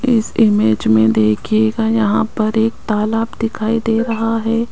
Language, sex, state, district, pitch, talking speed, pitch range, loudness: Hindi, female, Rajasthan, Jaipur, 225 Hz, 150 wpm, 215-225 Hz, -16 LUFS